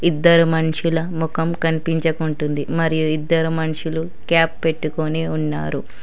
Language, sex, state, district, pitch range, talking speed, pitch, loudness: Telugu, female, Telangana, Hyderabad, 155-165 Hz, 100 wpm, 160 Hz, -20 LUFS